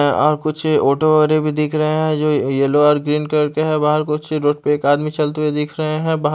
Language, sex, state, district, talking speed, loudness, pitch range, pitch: Hindi, male, Chandigarh, Chandigarh, 255 wpm, -17 LUFS, 150-155 Hz, 150 Hz